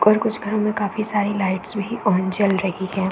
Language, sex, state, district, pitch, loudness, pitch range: Hindi, female, Bihar, East Champaran, 205 Hz, -21 LUFS, 190-215 Hz